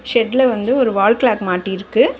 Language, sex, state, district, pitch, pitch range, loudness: Tamil, female, Tamil Nadu, Chennai, 225 Hz, 195-255 Hz, -16 LUFS